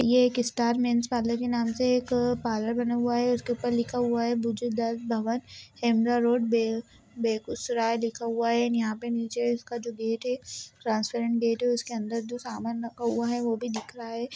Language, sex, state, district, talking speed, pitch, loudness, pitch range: Hindi, female, Bihar, Lakhisarai, 210 wpm, 235 Hz, -28 LUFS, 230-240 Hz